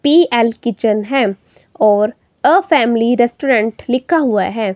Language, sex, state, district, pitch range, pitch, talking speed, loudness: Hindi, female, Himachal Pradesh, Shimla, 215-275 Hz, 235 Hz, 125 wpm, -14 LUFS